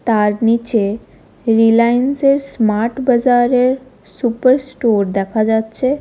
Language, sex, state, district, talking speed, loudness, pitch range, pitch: Bengali, female, Odisha, Khordha, 90 wpm, -15 LUFS, 220-255 Hz, 235 Hz